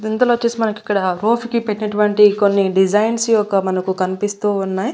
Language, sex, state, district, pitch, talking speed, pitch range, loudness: Telugu, female, Andhra Pradesh, Annamaya, 210 Hz, 160 wpm, 195-220 Hz, -17 LUFS